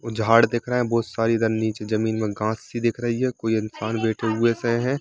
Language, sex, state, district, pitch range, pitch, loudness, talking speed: Hindi, male, Jharkhand, Jamtara, 110-120 Hz, 115 Hz, -23 LUFS, 240 wpm